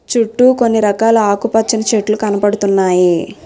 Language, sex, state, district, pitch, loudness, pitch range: Telugu, female, Telangana, Hyderabad, 215 Hz, -13 LUFS, 200-225 Hz